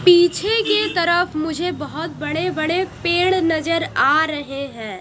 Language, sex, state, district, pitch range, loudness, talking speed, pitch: Hindi, female, Odisha, Malkangiri, 310-355 Hz, -19 LUFS, 145 wpm, 335 Hz